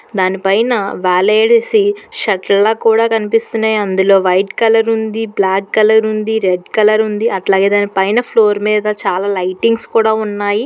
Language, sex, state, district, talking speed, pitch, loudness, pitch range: Telugu, female, Telangana, Hyderabad, 140 wpm, 215 Hz, -13 LUFS, 195-225 Hz